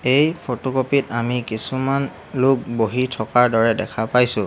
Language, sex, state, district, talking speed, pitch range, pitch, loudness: Assamese, male, Assam, Hailakandi, 150 wpm, 115-130 Hz, 125 Hz, -20 LUFS